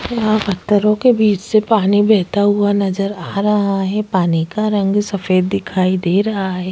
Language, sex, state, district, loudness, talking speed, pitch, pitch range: Hindi, female, Uttarakhand, Tehri Garhwal, -16 LUFS, 180 wpm, 200 Hz, 190-210 Hz